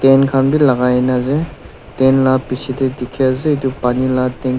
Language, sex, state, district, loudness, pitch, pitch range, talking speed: Nagamese, male, Nagaland, Dimapur, -15 LUFS, 130 Hz, 125-135 Hz, 195 wpm